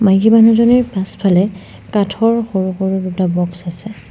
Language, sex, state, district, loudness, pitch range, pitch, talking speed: Assamese, female, Assam, Sonitpur, -14 LUFS, 185-220 Hz, 195 Hz, 130 wpm